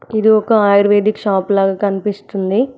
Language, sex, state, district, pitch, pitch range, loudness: Telugu, female, Telangana, Mahabubabad, 205 Hz, 195-215 Hz, -14 LUFS